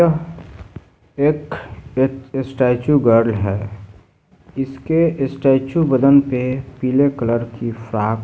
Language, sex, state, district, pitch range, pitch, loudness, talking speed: Hindi, female, Bihar, Jahanabad, 115-140 Hz, 130 Hz, -18 LUFS, 100 wpm